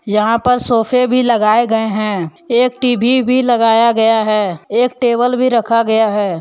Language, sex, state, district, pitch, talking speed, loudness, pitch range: Hindi, male, Jharkhand, Deoghar, 230 Hz, 180 wpm, -13 LUFS, 215-245 Hz